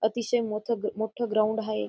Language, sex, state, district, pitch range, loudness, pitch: Marathi, female, Maharashtra, Dhule, 215-235 Hz, -28 LUFS, 220 Hz